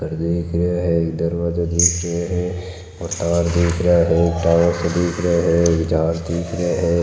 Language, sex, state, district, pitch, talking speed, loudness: Marwari, male, Rajasthan, Nagaur, 85 Hz, 190 wpm, -19 LUFS